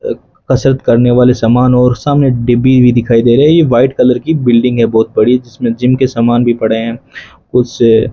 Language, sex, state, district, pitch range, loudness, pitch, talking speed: Hindi, male, Rajasthan, Bikaner, 115-130 Hz, -10 LUFS, 125 Hz, 220 wpm